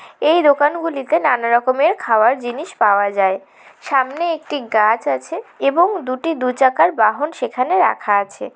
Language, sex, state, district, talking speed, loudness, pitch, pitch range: Bengali, female, West Bengal, Jalpaiguri, 140 wpm, -17 LUFS, 265 Hz, 230-315 Hz